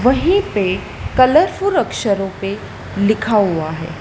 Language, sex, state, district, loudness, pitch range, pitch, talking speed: Hindi, female, Madhya Pradesh, Dhar, -16 LUFS, 195-255 Hz, 210 Hz, 120 wpm